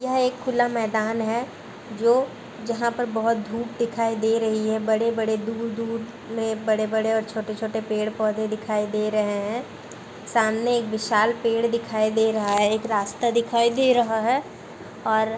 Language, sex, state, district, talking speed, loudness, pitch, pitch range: Hindi, female, Uttar Pradesh, Muzaffarnagar, 160 wpm, -24 LUFS, 225 Hz, 220-235 Hz